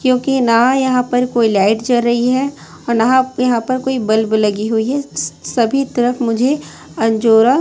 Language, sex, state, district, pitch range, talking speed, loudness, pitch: Hindi, female, Chhattisgarh, Raipur, 225-260 Hz, 180 wpm, -15 LUFS, 245 Hz